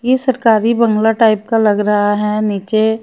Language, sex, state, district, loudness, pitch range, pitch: Hindi, female, Chhattisgarh, Raipur, -14 LUFS, 210-230 Hz, 220 Hz